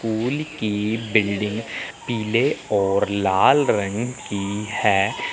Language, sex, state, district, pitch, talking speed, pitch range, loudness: Hindi, male, Chandigarh, Chandigarh, 105 Hz, 100 wpm, 100-115 Hz, -21 LUFS